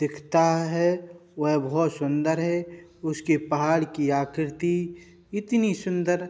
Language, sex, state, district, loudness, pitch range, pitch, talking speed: Hindi, male, Uttar Pradesh, Budaun, -25 LUFS, 150-175 Hz, 165 Hz, 125 wpm